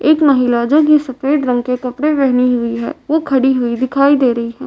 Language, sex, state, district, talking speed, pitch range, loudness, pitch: Hindi, female, Uttar Pradesh, Varanasi, 230 wpm, 250-290 Hz, -14 LUFS, 265 Hz